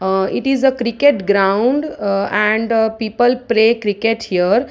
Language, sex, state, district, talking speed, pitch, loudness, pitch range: English, female, Gujarat, Valsad, 155 wpm, 220 Hz, -16 LUFS, 200-245 Hz